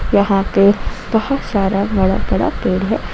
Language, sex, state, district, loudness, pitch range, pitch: Hindi, female, Jharkhand, Ranchi, -16 LUFS, 195-215 Hz, 200 Hz